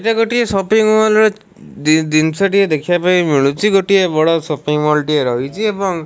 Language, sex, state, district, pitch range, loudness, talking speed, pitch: Odia, male, Odisha, Malkangiri, 155-210 Hz, -14 LUFS, 190 wpm, 180 Hz